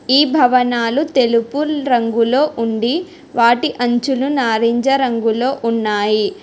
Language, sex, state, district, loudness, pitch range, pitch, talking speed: Telugu, female, Telangana, Hyderabad, -16 LUFS, 230-275 Hz, 245 Hz, 95 wpm